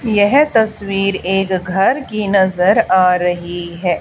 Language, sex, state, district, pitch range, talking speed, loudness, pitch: Hindi, male, Haryana, Charkhi Dadri, 180-215 Hz, 135 wpm, -15 LUFS, 195 Hz